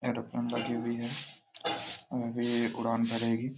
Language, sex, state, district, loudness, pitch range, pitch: Hindi, male, Jharkhand, Jamtara, -33 LUFS, 115-120 Hz, 120 Hz